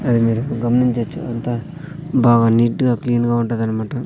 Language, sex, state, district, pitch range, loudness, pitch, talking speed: Telugu, male, Andhra Pradesh, Sri Satya Sai, 115-125 Hz, -18 LUFS, 120 Hz, 150 wpm